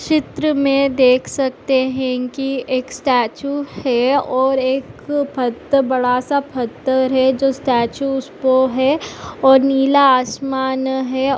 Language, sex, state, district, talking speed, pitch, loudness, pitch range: Hindi, female, Maharashtra, Solapur, 120 wpm, 265 Hz, -17 LUFS, 255-275 Hz